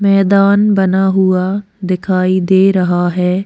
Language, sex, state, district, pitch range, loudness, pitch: Hindi, female, Chhattisgarh, Kabirdham, 185-195 Hz, -12 LUFS, 190 Hz